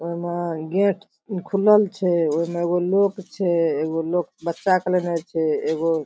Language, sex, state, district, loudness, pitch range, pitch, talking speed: Maithili, female, Bihar, Darbhanga, -22 LUFS, 165-195 Hz, 175 Hz, 180 wpm